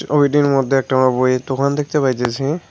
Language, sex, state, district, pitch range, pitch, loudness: Bengali, male, West Bengal, Cooch Behar, 130-145 Hz, 135 Hz, -17 LUFS